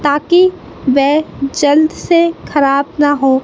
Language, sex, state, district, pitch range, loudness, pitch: Hindi, female, Madhya Pradesh, Katni, 275-320 Hz, -13 LUFS, 290 Hz